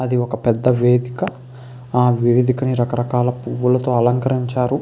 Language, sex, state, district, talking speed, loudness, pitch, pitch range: Telugu, male, Andhra Pradesh, Krishna, 110 wpm, -18 LUFS, 125 Hz, 120-125 Hz